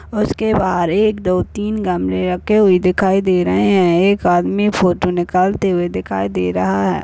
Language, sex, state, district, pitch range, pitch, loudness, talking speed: Hindi, female, Chhattisgarh, Bastar, 170-200 Hz, 180 Hz, -16 LUFS, 180 wpm